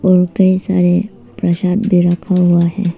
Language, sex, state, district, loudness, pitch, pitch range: Hindi, female, Arunachal Pradesh, Papum Pare, -13 LUFS, 180 Hz, 175-190 Hz